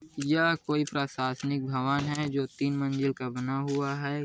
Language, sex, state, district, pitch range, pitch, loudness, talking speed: Hindi, male, Chhattisgarh, Kabirdham, 135-145 Hz, 140 Hz, -29 LUFS, 170 wpm